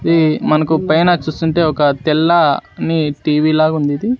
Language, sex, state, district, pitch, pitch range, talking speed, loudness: Telugu, male, Andhra Pradesh, Sri Satya Sai, 155 Hz, 155-165 Hz, 155 wpm, -14 LUFS